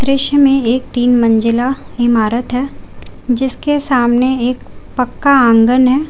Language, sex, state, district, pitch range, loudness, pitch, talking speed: Hindi, female, Jharkhand, Garhwa, 240-270 Hz, -13 LUFS, 250 Hz, 130 wpm